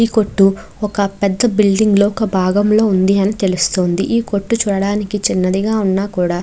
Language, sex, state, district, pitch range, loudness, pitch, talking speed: Telugu, female, Andhra Pradesh, Krishna, 195-210 Hz, -15 LUFS, 200 Hz, 170 wpm